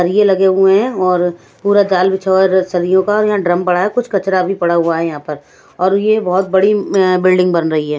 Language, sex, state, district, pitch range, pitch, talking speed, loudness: Hindi, female, Punjab, Pathankot, 175-195 Hz, 185 Hz, 245 wpm, -13 LUFS